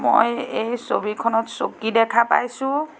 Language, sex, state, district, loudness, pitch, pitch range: Assamese, female, Assam, Sonitpur, -21 LUFS, 235 Hz, 225-250 Hz